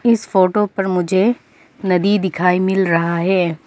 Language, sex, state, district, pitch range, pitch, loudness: Hindi, female, Arunachal Pradesh, Papum Pare, 180-200 Hz, 190 Hz, -16 LUFS